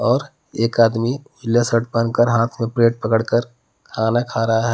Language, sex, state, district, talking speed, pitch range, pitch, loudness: Hindi, male, Jharkhand, Palamu, 190 wpm, 115-120 Hz, 115 Hz, -19 LUFS